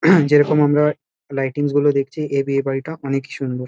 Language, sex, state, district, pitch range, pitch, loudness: Bengali, male, West Bengal, Kolkata, 135-150 Hz, 145 Hz, -18 LUFS